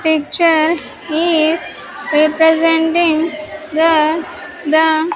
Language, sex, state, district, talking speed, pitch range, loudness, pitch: English, female, Andhra Pradesh, Sri Satya Sai, 70 wpm, 310-330 Hz, -14 LUFS, 320 Hz